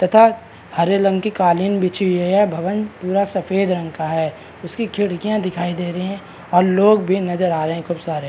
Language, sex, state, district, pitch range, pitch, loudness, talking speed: Hindi, male, Maharashtra, Chandrapur, 175-200 Hz, 185 Hz, -18 LUFS, 215 wpm